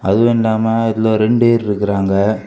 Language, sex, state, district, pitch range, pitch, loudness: Tamil, male, Tamil Nadu, Kanyakumari, 105-115 Hz, 110 Hz, -14 LUFS